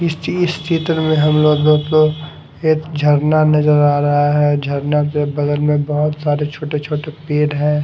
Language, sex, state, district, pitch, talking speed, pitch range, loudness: Hindi, male, Haryana, Charkhi Dadri, 150 Hz, 185 wpm, 145-155 Hz, -15 LUFS